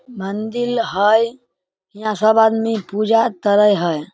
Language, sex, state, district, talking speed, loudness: Maithili, male, Bihar, Samastipur, 130 wpm, -17 LUFS